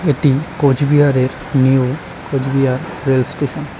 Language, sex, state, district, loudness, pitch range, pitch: Bengali, male, West Bengal, Cooch Behar, -16 LUFS, 130-145 Hz, 135 Hz